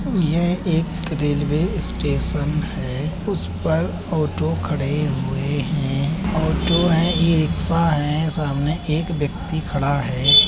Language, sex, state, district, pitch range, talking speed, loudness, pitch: Hindi, male, Uttar Pradesh, Budaun, 145-170 Hz, 125 wpm, -19 LUFS, 155 Hz